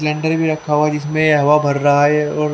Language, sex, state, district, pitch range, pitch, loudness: Hindi, male, Haryana, Charkhi Dadri, 150-155 Hz, 150 Hz, -15 LUFS